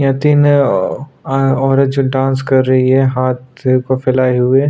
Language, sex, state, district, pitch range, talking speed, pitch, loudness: Hindi, male, Uttarakhand, Tehri Garhwal, 130-135 Hz, 155 wpm, 135 Hz, -13 LUFS